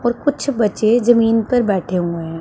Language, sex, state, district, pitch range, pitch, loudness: Hindi, female, Punjab, Pathankot, 190-240 Hz, 225 Hz, -16 LUFS